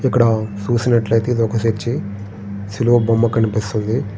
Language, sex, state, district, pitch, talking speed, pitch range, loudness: Telugu, male, Andhra Pradesh, Srikakulam, 115 Hz, 145 wpm, 105-120 Hz, -17 LUFS